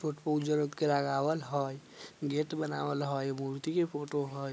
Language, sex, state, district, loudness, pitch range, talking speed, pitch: Bajjika, female, Bihar, Vaishali, -33 LUFS, 140-150 Hz, 120 wpm, 145 Hz